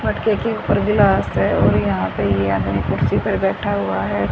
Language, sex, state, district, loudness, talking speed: Hindi, female, Haryana, Rohtak, -18 LUFS, 210 wpm